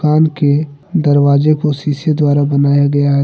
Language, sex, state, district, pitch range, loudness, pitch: Hindi, male, Jharkhand, Deoghar, 145-150 Hz, -13 LUFS, 145 Hz